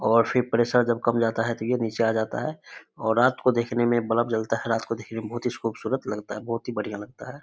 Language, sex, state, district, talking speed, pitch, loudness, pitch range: Hindi, male, Bihar, Samastipur, 265 wpm, 115 Hz, -25 LUFS, 110-120 Hz